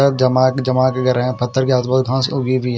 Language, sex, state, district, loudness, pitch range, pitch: Hindi, male, Punjab, Fazilka, -16 LUFS, 125-130 Hz, 130 Hz